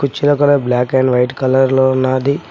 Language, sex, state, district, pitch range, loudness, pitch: Telugu, male, Telangana, Mahabubabad, 130-140 Hz, -14 LUFS, 130 Hz